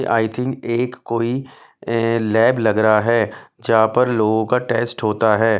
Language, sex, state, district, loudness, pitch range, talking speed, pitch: Hindi, male, Bihar, West Champaran, -18 LUFS, 110-120 Hz, 160 wpm, 115 Hz